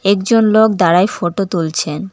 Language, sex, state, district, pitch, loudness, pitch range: Bengali, female, West Bengal, Alipurduar, 195 Hz, -14 LUFS, 175-210 Hz